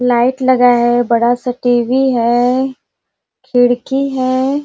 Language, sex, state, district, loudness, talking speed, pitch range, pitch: Hindi, female, Chhattisgarh, Sarguja, -13 LUFS, 130 wpm, 245-260 Hz, 250 Hz